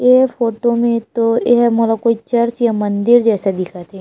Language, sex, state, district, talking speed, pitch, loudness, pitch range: Chhattisgarhi, female, Chhattisgarh, Raigarh, 195 wpm, 230 Hz, -15 LUFS, 220-235 Hz